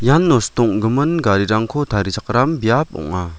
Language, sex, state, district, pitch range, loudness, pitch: Garo, male, Meghalaya, West Garo Hills, 105-145 Hz, -17 LUFS, 115 Hz